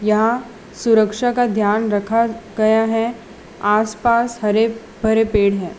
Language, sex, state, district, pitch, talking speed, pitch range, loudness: Hindi, female, Gujarat, Valsad, 220 Hz, 125 wpm, 215-230 Hz, -18 LUFS